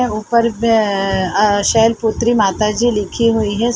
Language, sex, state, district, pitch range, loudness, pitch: Hindi, female, Uttar Pradesh, Jalaun, 205-230 Hz, -15 LUFS, 220 Hz